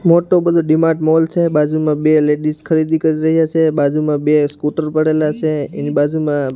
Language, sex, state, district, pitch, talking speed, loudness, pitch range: Gujarati, male, Gujarat, Gandhinagar, 155 Hz, 185 wpm, -15 LUFS, 150-160 Hz